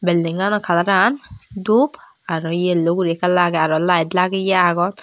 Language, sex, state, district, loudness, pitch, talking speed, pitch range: Chakma, female, Tripura, Dhalai, -17 LUFS, 180 Hz, 145 wpm, 170-190 Hz